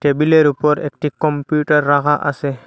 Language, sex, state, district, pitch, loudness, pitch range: Bengali, male, Assam, Hailakandi, 150 Hz, -16 LUFS, 145-150 Hz